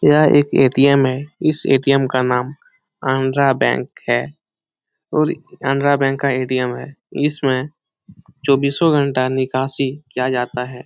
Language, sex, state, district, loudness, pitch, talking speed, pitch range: Hindi, male, Bihar, Jahanabad, -17 LUFS, 135 Hz, 140 wpm, 130-145 Hz